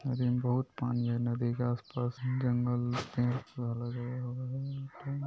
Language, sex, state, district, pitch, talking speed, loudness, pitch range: Hindi, male, Bihar, Purnia, 125 Hz, 160 wpm, -34 LUFS, 120-130 Hz